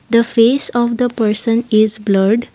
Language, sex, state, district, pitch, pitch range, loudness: English, female, Assam, Kamrup Metropolitan, 230 Hz, 215-240 Hz, -14 LUFS